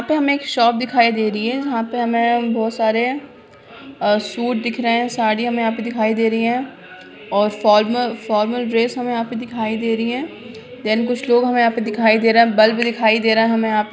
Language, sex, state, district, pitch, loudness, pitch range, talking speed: Hindi, female, Bihar, Jamui, 230 Hz, -18 LUFS, 220-240 Hz, 230 wpm